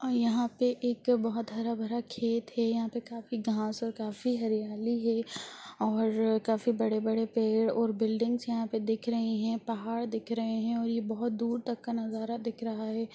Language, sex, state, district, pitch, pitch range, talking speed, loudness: Hindi, female, Bihar, Jamui, 230 Hz, 225-235 Hz, 185 wpm, -31 LUFS